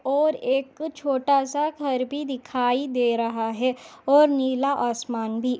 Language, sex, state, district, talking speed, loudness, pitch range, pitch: Hindi, female, Chhattisgarh, Bastar, 160 wpm, -24 LUFS, 245-280 Hz, 265 Hz